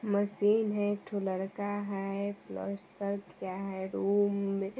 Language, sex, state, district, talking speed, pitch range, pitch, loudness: Maithili, female, Bihar, Vaishali, 135 wpm, 195-205 Hz, 200 Hz, -33 LUFS